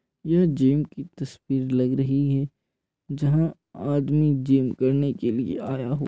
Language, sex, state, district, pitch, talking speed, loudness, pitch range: Hindi, male, Bihar, Purnia, 140 Hz, 160 wpm, -23 LUFS, 135-145 Hz